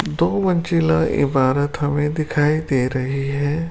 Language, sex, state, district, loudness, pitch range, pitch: Hindi, male, Rajasthan, Jaipur, -19 LUFS, 135-160 Hz, 145 Hz